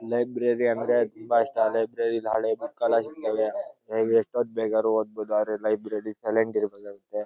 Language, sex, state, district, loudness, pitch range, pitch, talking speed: Kannada, male, Karnataka, Shimoga, -26 LUFS, 110-120 Hz, 110 Hz, 155 wpm